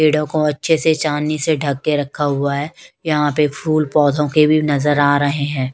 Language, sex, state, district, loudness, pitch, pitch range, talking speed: Hindi, female, Bihar, West Champaran, -17 LUFS, 150 Hz, 145-155 Hz, 220 wpm